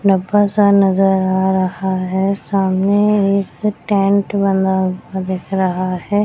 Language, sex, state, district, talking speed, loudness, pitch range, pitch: Hindi, female, Bihar, Madhepura, 135 wpm, -16 LUFS, 190-200 Hz, 195 Hz